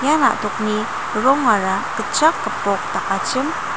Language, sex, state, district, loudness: Garo, female, Meghalaya, North Garo Hills, -19 LUFS